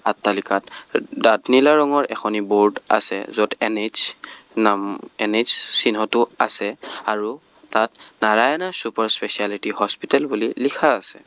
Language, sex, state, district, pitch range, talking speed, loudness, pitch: Assamese, male, Assam, Kamrup Metropolitan, 105-120 Hz, 110 wpm, -19 LUFS, 110 Hz